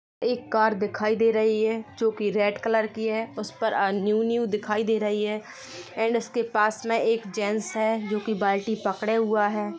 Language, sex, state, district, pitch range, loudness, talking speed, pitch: Hindi, female, Jharkhand, Sahebganj, 210-225 Hz, -25 LUFS, 185 wpm, 220 Hz